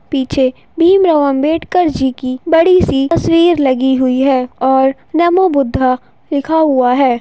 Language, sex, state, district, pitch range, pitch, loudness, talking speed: Hindi, female, Bihar, Jahanabad, 260-330 Hz, 275 Hz, -12 LUFS, 150 wpm